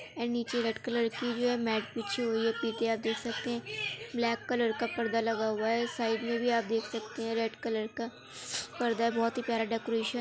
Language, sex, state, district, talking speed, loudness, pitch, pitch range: Hindi, female, Bihar, Muzaffarpur, 235 wpm, -32 LUFS, 230 Hz, 225-235 Hz